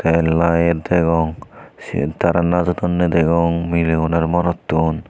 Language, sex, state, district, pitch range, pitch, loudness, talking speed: Chakma, male, Tripura, Unakoti, 80-85 Hz, 85 Hz, -17 LUFS, 115 wpm